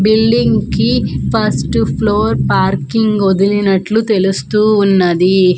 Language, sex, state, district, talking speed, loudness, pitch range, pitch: Telugu, female, Andhra Pradesh, Manyam, 85 wpm, -13 LUFS, 190-215 Hz, 200 Hz